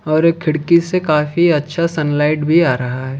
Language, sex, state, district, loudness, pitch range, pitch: Hindi, male, Odisha, Khordha, -15 LUFS, 150-170 Hz, 155 Hz